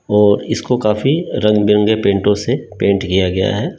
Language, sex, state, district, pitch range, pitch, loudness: Hindi, male, Delhi, New Delhi, 100-120 Hz, 105 Hz, -15 LUFS